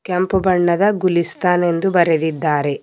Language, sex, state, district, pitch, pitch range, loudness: Kannada, male, Karnataka, Bidar, 175 Hz, 165-185 Hz, -17 LUFS